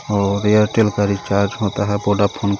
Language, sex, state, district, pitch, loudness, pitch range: Hindi, male, Jharkhand, Garhwa, 100 Hz, -17 LUFS, 100-105 Hz